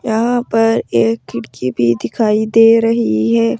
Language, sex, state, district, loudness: Hindi, female, Rajasthan, Jaipur, -14 LUFS